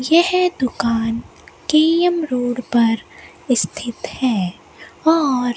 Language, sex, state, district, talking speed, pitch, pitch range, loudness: Hindi, female, Rajasthan, Bikaner, 85 wpm, 250 Hz, 235-320 Hz, -18 LUFS